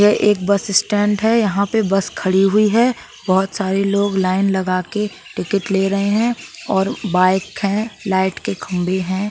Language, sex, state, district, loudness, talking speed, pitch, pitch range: Hindi, male, Uttar Pradesh, Budaun, -18 LUFS, 175 wpm, 200 Hz, 190-210 Hz